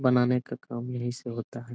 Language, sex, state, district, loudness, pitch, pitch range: Hindi, male, Bihar, Jahanabad, -30 LUFS, 120 Hz, 120-125 Hz